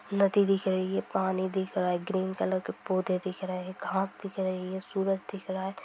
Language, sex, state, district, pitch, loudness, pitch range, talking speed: Hindi, female, Bihar, Sitamarhi, 190 Hz, -30 LUFS, 185-195 Hz, 235 wpm